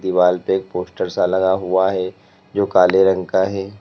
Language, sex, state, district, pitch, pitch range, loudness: Hindi, male, Uttar Pradesh, Lalitpur, 95 Hz, 90-95 Hz, -18 LUFS